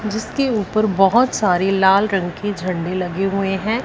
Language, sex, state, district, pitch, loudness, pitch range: Hindi, female, Punjab, Fazilka, 195 Hz, -18 LUFS, 190-215 Hz